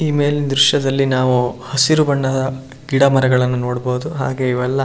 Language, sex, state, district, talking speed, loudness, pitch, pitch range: Kannada, male, Karnataka, Shimoga, 135 wpm, -16 LUFS, 135 Hz, 125-140 Hz